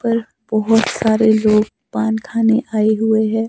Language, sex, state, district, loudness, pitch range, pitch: Hindi, male, Himachal Pradesh, Shimla, -16 LUFS, 220-225 Hz, 220 Hz